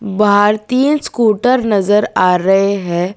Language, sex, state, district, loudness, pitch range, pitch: Hindi, female, Gujarat, Valsad, -13 LUFS, 195-225 Hz, 205 Hz